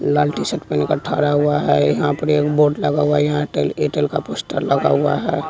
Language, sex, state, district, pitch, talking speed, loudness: Hindi, male, Bihar, West Champaran, 145 Hz, 230 wpm, -18 LUFS